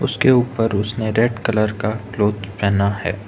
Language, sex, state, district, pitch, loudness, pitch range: Hindi, male, Arunachal Pradesh, Lower Dibang Valley, 110 Hz, -19 LUFS, 100-115 Hz